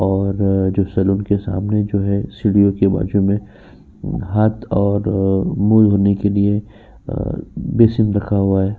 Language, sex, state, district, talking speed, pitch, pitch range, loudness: Hindi, male, Uttar Pradesh, Jyotiba Phule Nagar, 150 wpm, 100 Hz, 95-105 Hz, -17 LUFS